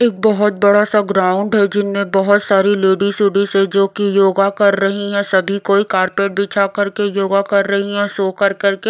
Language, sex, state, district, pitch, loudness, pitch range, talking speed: Hindi, female, Odisha, Khordha, 200 Hz, -15 LUFS, 195-205 Hz, 210 wpm